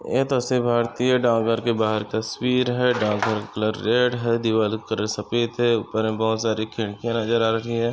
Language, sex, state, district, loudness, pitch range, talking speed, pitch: Hindi, male, Maharashtra, Chandrapur, -22 LUFS, 110-120 Hz, 210 wpm, 115 Hz